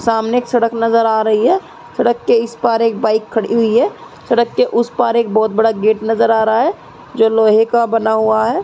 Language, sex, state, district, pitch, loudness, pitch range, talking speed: Hindi, female, Uttar Pradesh, Muzaffarnagar, 225 Hz, -14 LUFS, 220-235 Hz, 235 wpm